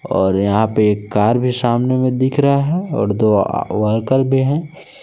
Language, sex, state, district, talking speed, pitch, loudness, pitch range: Hindi, male, Jharkhand, Palamu, 205 wpm, 125 Hz, -16 LUFS, 105-140 Hz